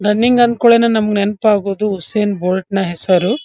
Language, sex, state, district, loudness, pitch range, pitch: Kannada, female, Karnataka, Dharwad, -14 LUFS, 195-230 Hz, 210 Hz